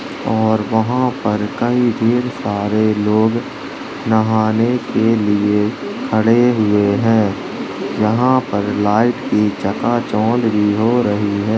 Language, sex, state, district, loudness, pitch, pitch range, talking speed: Hindi, male, Uttar Pradesh, Jalaun, -16 LUFS, 110 Hz, 105-120 Hz, 110 wpm